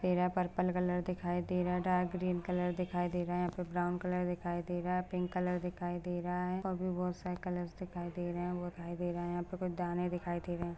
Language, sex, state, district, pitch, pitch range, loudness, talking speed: Hindi, female, Chhattisgarh, Bastar, 180 Hz, 175-180 Hz, -37 LUFS, 280 wpm